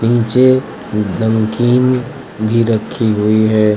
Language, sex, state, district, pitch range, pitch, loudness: Hindi, male, Uttar Pradesh, Lucknow, 110-125 Hz, 110 Hz, -14 LUFS